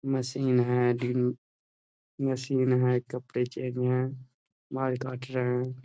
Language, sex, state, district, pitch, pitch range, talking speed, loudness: Hindi, male, Bihar, Jahanabad, 125 Hz, 125-130 Hz, 125 wpm, -29 LUFS